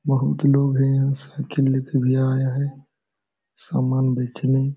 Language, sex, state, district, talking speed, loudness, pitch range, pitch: Hindi, male, Bihar, Supaul, 165 wpm, -21 LUFS, 130-140 Hz, 135 Hz